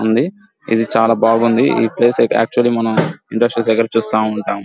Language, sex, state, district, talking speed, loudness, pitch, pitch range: Telugu, male, Andhra Pradesh, Guntur, 155 wpm, -15 LUFS, 115 Hz, 110-120 Hz